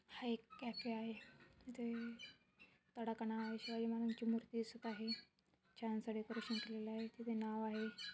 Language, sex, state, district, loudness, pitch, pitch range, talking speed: Marathi, female, Maharashtra, Sindhudurg, -46 LUFS, 230 Hz, 220-235 Hz, 140 wpm